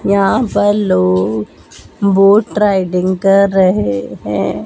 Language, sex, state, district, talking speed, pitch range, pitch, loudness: Hindi, male, Madhya Pradesh, Dhar, 105 wpm, 150-200 Hz, 195 Hz, -13 LUFS